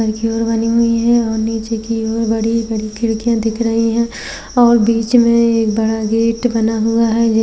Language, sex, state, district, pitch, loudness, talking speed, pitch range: Hindi, female, Uttar Pradesh, Jyotiba Phule Nagar, 225 Hz, -15 LUFS, 200 wpm, 225-230 Hz